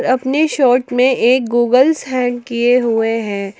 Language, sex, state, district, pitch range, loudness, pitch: Hindi, female, Jharkhand, Palamu, 235-260 Hz, -14 LUFS, 245 Hz